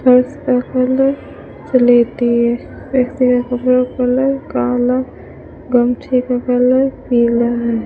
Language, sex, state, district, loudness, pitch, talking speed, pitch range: Hindi, female, Rajasthan, Bikaner, -15 LUFS, 250 Hz, 60 wpm, 245-255 Hz